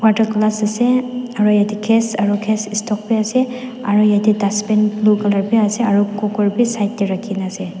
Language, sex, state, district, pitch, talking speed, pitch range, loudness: Nagamese, female, Nagaland, Dimapur, 210 Hz, 200 wpm, 205-225 Hz, -17 LUFS